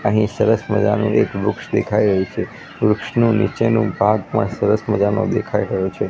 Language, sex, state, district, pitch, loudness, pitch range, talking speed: Gujarati, male, Gujarat, Gandhinagar, 105 Hz, -18 LUFS, 100-115 Hz, 165 wpm